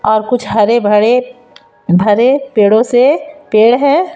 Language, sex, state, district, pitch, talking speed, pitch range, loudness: Hindi, female, Chhattisgarh, Raipur, 235 Hz, 130 wpm, 210-260 Hz, -11 LUFS